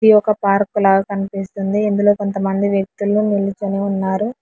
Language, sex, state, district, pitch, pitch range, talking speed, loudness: Telugu, male, Telangana, Hyderabad, 200 Hz, 195-205 Hz, 135 wpm, -17 LUFS